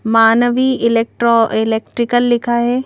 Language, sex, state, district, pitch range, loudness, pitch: Hindi, female, Madhya Pradesh, Bhopal, 225-240 Hz, -14 LUFS, 235 Hz